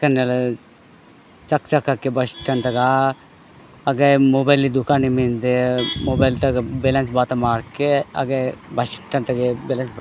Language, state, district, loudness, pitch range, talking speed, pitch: Gondi, Chhattisgarh, Sukma, -19 LUFS, 125-135 Hz, 145 wpm, 130 Hz